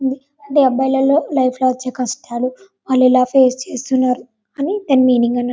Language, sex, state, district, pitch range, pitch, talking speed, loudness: Telugu, female, Telangana, Karimnagar, 255-270 Hz, 260 Hz, 160 wpm, -16 LUFS